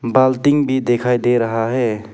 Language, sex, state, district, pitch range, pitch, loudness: Hindi, male, Arunachal Pradesh, Papum Pare, 115-130 Hz, 125 Hz, -16 LUFS